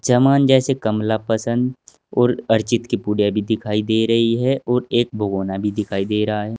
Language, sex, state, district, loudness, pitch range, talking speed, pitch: Hindi, male, Uttar Pradesh, Saharanpur, -19 LUFS, 105-120 Hz, 180 wpm, 110 Hz